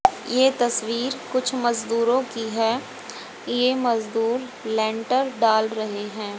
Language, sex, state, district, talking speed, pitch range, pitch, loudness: Hindi, female, Haryana, Rohtak, 115 wpm, 220-255 Hz, 235 Hz, -23 LUFS